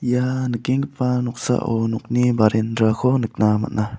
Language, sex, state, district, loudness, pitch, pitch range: Garo, male, Meghalaya, South Garo Hills, -20 LUFS, 120 Hz, 110-125 Hz